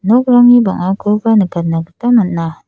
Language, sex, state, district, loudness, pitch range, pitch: Garo, female, Meghalaya, South Garo Hills, -12 LUFS, 170-240 Hz, 205 Hz